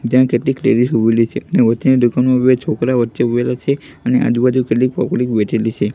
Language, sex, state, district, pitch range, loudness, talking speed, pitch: Gujarati, male, Gujarat, Gandhinagar, 115-130 Hz, -15 LUFS, 170 wpm, 125 Hz